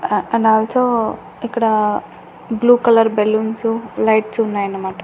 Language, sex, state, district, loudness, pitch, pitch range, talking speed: Telugu, female, Andhra Pradesh, Annamaya, -16 LUFS, 225 Hz, 215-230 Hz, 120 wpm